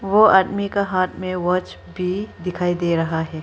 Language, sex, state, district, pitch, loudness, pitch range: Hindi, female, Arunachal Pradesh, Lower Dibang Valley, 185 Hz, -20 LUFS, 175-195 Hz